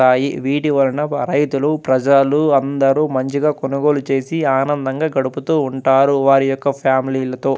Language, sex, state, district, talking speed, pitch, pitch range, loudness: Telugu, male, Andhra Pradesh, Anantapur, 125 wpm, 135 Hz, 135-145 Hz, -16 LUFS